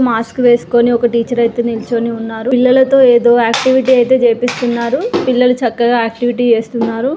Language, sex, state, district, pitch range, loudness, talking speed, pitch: Telugu, female, Andhra Pradesh, Guntur, 235-250 Hz, -12 LUFS, 135 wpm, 240 Hz